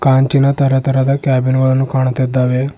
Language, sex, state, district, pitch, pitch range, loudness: Kannada, male, Karnataka, Bidar, 130 Hz, 130-135 Hz, -14 LUFS